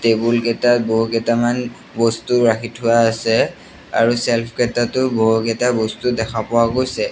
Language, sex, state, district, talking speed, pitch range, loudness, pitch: Assamese, male, Assam, Sonitpur, 125 wpm, 115-120 Hz, -17 LUFS, 115 Hz